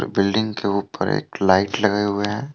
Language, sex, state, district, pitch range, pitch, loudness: Hindi, male, Jharkhand, Deoghar, 100-105 Hz, 100 Hz, -21 LUFS